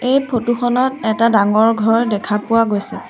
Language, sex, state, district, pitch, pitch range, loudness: Assamese, female, Assam, Sonitpur, 230 Hz, 215-245 Hz, -16 LUFS